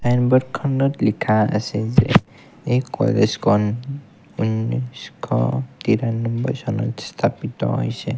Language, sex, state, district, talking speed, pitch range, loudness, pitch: Assamese, male, Assam, Kamrup Metropolitan, 80 wpm, 110-130 Hz, -20 LUFS, 120 Hz